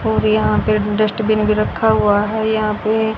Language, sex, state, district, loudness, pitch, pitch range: Hindi, female, Haryana, Rohtak, -16 LUFS, 215 Hz, 205-220 Hz